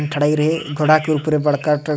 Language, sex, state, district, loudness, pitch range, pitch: Sadri, male, Chhattisgarh, Jashpur, -17 LUFS, 150-155 Hz, 150 Hz